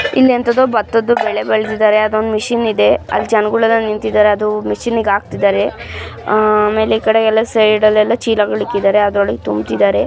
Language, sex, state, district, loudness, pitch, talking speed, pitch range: Kannada, female, Karnataka, Mysore, -14 LUFS, 215 Hz, 120 wpm, 210-225 Hz